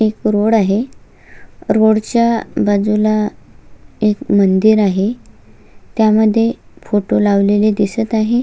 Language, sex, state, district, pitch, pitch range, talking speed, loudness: Marathi, female, Maharashtra, Solapur, 215 Hz, 205-220 Hz, 90 wpm, -14 LUFS